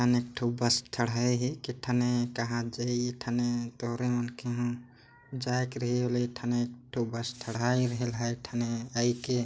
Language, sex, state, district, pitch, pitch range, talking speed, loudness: Chhattisgarhi, male, Chhattisgarh, Jashpur, 120 Hz, 120-125 Hz, 165 wpm, -31 LUFS